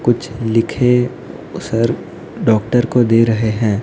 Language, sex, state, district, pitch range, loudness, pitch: Hindi, male, Odisha, Nuapada, 110-125 Hz, -16 LUFS, 115 Hz